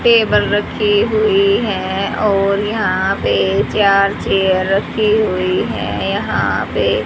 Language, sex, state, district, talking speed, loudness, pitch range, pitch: Hindi, female, Haryana, Rohtak, 120 wpm, -15 LUFS, 195-215 Hz, 200 Hz